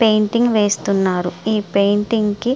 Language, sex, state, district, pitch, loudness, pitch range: Telugu, female, Andhra Pradesh, Srikakulam, 210 Hz, -17 LUFS, 200-225 Hz